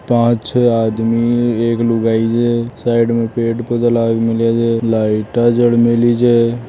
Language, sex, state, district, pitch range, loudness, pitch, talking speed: Marwari, male, Rajasthan, Churu, 115-120 Hz, -14 LUFS, 115 Hz, 160 wpm